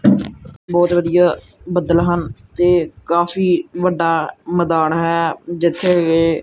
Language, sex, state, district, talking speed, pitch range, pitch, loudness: Punjabi, male, Punjab, Kapurthala, 100 wpm, 165-175 Hz, 170 Hz, -17 LUFS